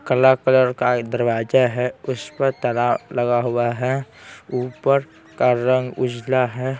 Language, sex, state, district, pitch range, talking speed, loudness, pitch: Hindi, male, Bihar, Patna, 120-130 Hz, 140 wpm, -20 LUFS, 125 Hz